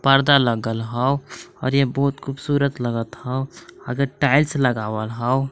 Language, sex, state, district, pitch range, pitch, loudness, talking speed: Magahi, male, Jharkhand, Palamu, 120-140 Hz, 135 Hz, -21 LUFS, 140 wpm